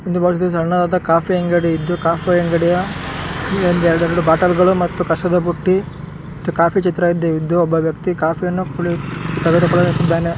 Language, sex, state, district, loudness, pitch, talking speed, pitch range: Kannada, male, Karnataka, Shimoga, -16 LUFS, 175 Hz, 115 wpm, 165-180 Hz